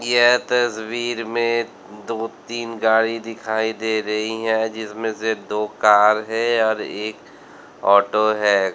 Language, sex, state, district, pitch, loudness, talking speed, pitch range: Hindi, male, Uttar Pradesh, Lalitpur, 110 Hz, -20 LUFS, 130 wpm, 110-115 Hz